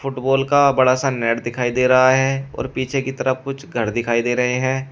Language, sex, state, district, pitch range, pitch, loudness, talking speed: Hindi, male, Uttar Pradesh, Shamli, 125-135 Hz, 130 Hz, -18 LUFS, 230 wpm